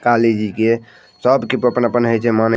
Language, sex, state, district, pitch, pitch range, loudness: Maithili, male, Bihar, Madhepura, 115 Hz, 115-120 Hz, -16 LUFS